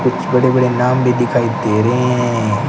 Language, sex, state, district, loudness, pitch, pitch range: Hindi, male, Rajasthan, Bikaner, -15 LUFS, 125 Hz, 115-125 Hz